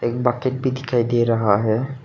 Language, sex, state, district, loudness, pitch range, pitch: Hindi, male, Arunachal Pradesh, Papum Pare, -20 LUFS, 115-130 Hz, 120 Hz